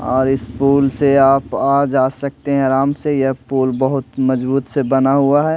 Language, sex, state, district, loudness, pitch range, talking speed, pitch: Hindi, male, Delhi, New Delhi, -16 LUFS, 130-140 Hz, 205 wpm, 135 Hz